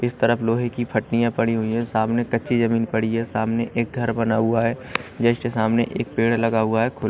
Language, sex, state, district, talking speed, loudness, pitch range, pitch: Hindi, male, Odisha, Malkangiri, 230 wpm, -22 LUFS, 110-120 Hz, 115 Hz